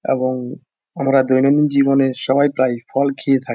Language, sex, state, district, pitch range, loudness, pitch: Bengali, male, West Bengal, Jhargram, 130-140 Hz, -17 LUFS, 135 Hz